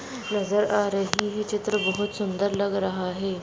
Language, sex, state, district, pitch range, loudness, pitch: Hindi, female, Uttarakhand, Uttarkashi, 195-210 Hz, -26 LUFS, 200 Hz